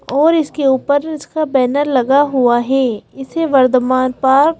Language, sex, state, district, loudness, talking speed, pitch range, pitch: Hindi, female, Madhya Pradesh, Bhopal, -14 LUFS, 155 wpm, 255-290 Hz, 270 Hz